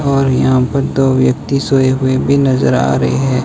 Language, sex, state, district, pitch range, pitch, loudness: Hindi, male, Himachal Pradesh, Shimla, 130-135 Hz, 130 Hz, -13 LUFS